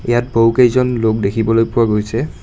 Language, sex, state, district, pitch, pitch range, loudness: Assamese, male, Assam, Kamrup Metropolitan, 115 Hz, 115-120 Hz, -15 LUFS